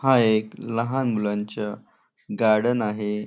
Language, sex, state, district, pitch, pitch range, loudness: Marathi, male, Maharashtra, Nagpur, 110 Hz, 105-120 Hz, -24 LUFS